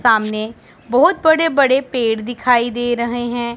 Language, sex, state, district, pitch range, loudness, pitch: Hindi, female, Punjab, Pathankot, 230-260 Hz, -16 LUFS, 240 Hz